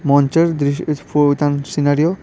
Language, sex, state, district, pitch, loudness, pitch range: Bengali, male, Tripura, West Tripura, 145 Hz, -16 LUFS, 145-155 Hz